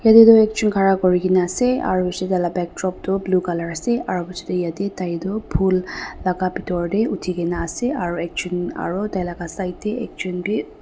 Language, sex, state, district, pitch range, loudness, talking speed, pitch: Nagamese, female, Nagaland, Dimapur, 175-200 Hz, -20 LUFS, 215 wpm, 185 Hz